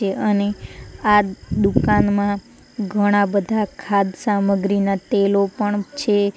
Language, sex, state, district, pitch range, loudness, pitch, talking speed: Gujarati, female, Gujarat, Valsad, 200-210 Hz, -19 LUFS, 205 Hz, 95 wpm